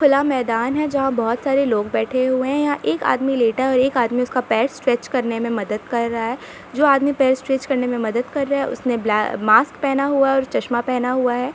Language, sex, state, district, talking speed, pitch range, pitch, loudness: Hindi, female, Jharkhand, Sahebganj, 255 wpm, 235-270 Hz, 255 Hz, -19 LUFS